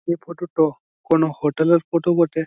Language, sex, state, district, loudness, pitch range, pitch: Bengali, male, West Bengal, Malda, -20 LUFS, 160-170 Hz, 165 Hz